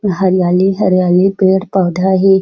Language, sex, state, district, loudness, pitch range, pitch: Chhattisgarhi, female, Chhattisgarh, Raigarh, -12 LUFS, 185-195 Hz, 190 Hz